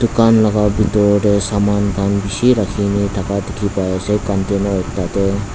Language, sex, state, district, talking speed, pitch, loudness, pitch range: Nagamese, male, Nagaland, Dimapur, 150 wpm, 100 Hz, -16 LUFS, 100-105 Hz